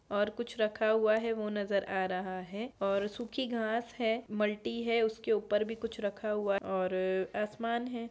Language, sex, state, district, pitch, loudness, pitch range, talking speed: Hindi, female, Bihar, Gaya, 215 Hz, -33 LUFS, 200-230 Hz, 185 wpm